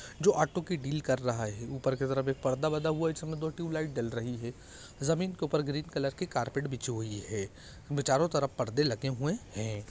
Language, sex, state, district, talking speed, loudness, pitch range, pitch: Hindi, male, Andhra Pradesh, Chittoor, 230 wpm, -33 LUFS, 120-155 Hz, 135 Hz